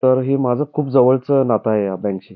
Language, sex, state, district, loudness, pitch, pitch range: Marathi, male, Karnataka, Belgaum, -17 LUFS, 130 Hz, 105-135 Hz